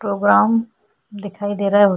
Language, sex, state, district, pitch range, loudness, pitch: Hindi, female, Goa, North and South Goa, 200-215 Hz, -17 LUFS, 205 Hz